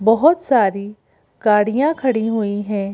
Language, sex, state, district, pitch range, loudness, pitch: Hindi, female, Madhya Pradesh, Bhopal, 205-255 Hz, -17 LUFS, 215 Hz